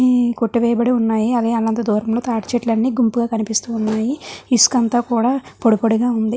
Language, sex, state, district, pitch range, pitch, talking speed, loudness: Telugu, female, Andhra Pradesh, Visakhapatnam, 225-240 Hz, 235 Hz, 160 wpm, -17 LUFS